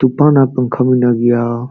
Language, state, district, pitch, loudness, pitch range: Santali, Jharkhand, Sahebganj, 125 Hz, -13 LUFS, 120-130 Hz